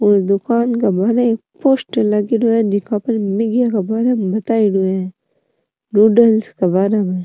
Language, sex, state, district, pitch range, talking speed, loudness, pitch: Rajasthani, female, Rajasthan, Nagaur, 200-235 Hz, 100 wpm, -16 LUFS, 220 Hz